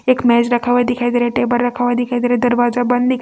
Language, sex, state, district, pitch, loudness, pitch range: Hindi, female, Chhattisgarh, Raipur, 245 Hz, -16 LUFS, 240-245 Hz